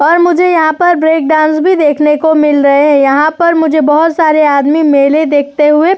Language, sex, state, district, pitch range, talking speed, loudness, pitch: Hindi, female, Uttar Pradesh, Etah, 295-320 Hz, 210 wpm, -9 LUFS, 310 Hz